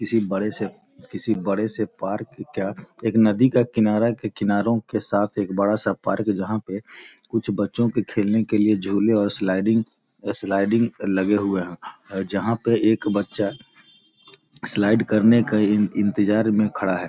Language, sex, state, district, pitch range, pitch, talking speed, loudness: Hindi, male, Bihar, Gopalganj, 100-110 Hz, 105 Hz, 160 wpm, -22 LUFS